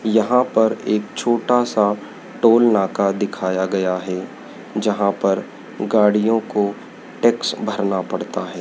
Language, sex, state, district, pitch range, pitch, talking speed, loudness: Hindi, male, Madhya Pradesh, Dhar, 100-110 Hz, 105 Hz, 125 wpm, -19 LUFS